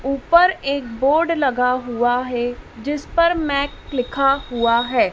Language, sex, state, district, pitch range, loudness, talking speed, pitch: Hindi, female, Madhya Pradesh, Dhar, 245-295 Hz, -19 LUFS, 130 wpm, 275 Hz